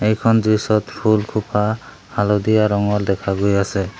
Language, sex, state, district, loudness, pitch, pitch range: Assamese, male, Assam, Sonitpur, -18 LUFS, 105 Hz, 100-110 Hz